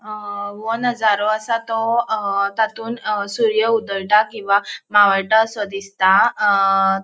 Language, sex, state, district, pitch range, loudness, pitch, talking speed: Konkani, female, Goa, North and South Goa, 200-225 Hz, -18 LUFS, 210 Hz, 135 wpm